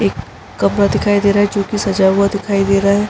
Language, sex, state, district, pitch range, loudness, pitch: Hindi, female, Uttar Pradesh, Jalaun, 190-205 Hz, -14 LUFS, 200 Hz